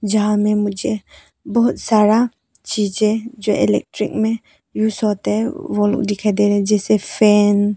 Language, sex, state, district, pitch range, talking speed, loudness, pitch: Hindi, female, Arunachal Pradesh, Papum Pare, 205-220 Hz, 155 wpm, -17 LUFS, 210 Hz